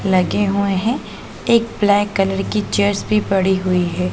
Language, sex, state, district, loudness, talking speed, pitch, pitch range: Hindi, female, Punjab, Pathankot, -18 LUFS, 160 wpm, 200 Hz, 190-205 Hz